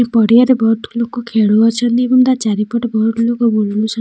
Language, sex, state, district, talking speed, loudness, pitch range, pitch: Odia, female, Odisha, Khordha, 165 wpm, -13 LUFS, 220-240 Hz, 230 Hz